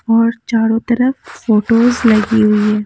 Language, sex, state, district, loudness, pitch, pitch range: Hindi, female, Haryana, Jhajjar, -13 LUFS, 225 Hz, 215-235 Hz